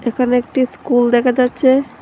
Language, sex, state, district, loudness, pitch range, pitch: Bengali, female, Tripura, Dhalai, -15 LUFS, 245-260 Hz, 250 Hz